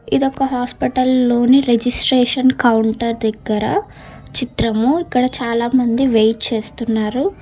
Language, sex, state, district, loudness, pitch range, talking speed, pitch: Telugu, female, Telangana, Hyderabad, -16 LUFS, 225-255 Hz, 90 wpm, 245 Hz